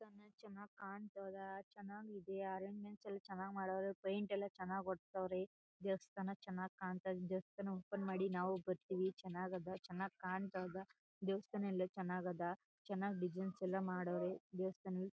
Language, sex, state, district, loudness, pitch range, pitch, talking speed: Kannada, female, Karnataka, Chamarajanagar, -46 LUFS, 185-195 Hz, 190 Hz, 130 wpm